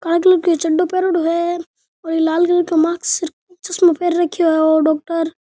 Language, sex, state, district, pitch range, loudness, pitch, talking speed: Rajasthani, male, Rajasthan, Nagaur, 325-355 Hz, -16 LUFS, 340 Hz, 190 wpm